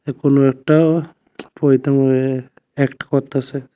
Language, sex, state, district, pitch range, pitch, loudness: Bengali, male, Tripura, West Tripura, 135-145 Hz, 140 Hz, -17 LUFS